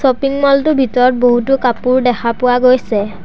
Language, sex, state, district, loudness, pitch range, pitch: Assamese, male, Assam, Sonitpur, -13 LUFS, 240-265 Hz, 250 Hz